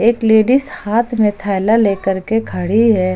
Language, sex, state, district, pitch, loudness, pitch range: Hindi, male, Jharkhand, Ranchi, 220 Hz, -15 LUFS, 195-230 Hz